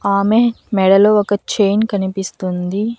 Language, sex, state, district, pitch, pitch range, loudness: Telugu, female, Andhra Pradesh, Annamaya, 200 Hz, 195-215 Hz, -15 LUFS